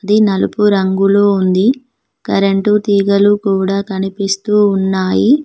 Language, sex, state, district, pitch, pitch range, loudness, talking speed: Telugu, female, Telangana, Mahabubabad, 200 Hz, 195-210 Hz, -13 LUFS, 100 wpm